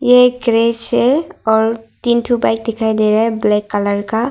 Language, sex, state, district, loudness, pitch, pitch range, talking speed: Hindi, female, Arunachal Pradesh, Longding, -15 LUFS, 230 Hz, 220-240 Hz, 210 wpm